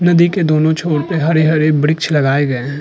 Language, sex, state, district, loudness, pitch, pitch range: Hindi, male, Uttarakhand, Tehri Garhwal, -14 LUFS, 155 Hz, 150-165 Hz